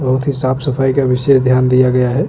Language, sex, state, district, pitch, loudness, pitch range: Hindi, male, Chhattisgarh, Bastar, 130 Hz, -13 LUFS, 130-135 Hz